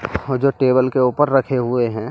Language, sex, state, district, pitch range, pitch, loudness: Hindi, male, Delhi, New Delhi, 120-135 Hz, 130 Hz, -17 LUFS